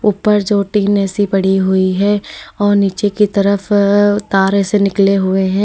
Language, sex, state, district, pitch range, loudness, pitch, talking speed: Hindi, female, Uttar Pradesh, Lalitpur, 195-205 Hz, -13 LUFS, 200 Hz, 180 wpm